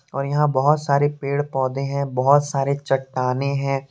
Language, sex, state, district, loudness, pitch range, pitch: Hindi, male, Jharkhand, Deoghar, -21 LUFS, 135-145 Hz, 140 Hz